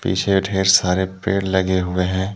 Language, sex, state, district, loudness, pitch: Hindi, male, Jharkhand, Deoghar, -18 LUFS, 95 Hz